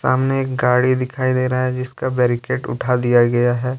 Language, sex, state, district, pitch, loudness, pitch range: Hindi, male, Jharkhand, Deoghar, 125 Hz, -18 LUFS, 125-130 Hz